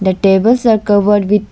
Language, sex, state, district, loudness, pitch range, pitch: English, female, Arunachal Pradesh, Lower Dibang Valley, -12 LUFS, 195-215 Hz, 205 Hz